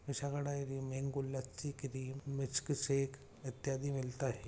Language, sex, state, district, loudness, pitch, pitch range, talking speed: Hindi, male, Maharashtra, Aurangabad, -40 LUFS, 135 Hz, 130-140 Hz, 135 wpm